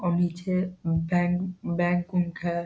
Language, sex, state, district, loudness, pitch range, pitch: Hindi, male, Bihar, Saharsa, -27 LUFS, 170-180 Hz, 175 Hz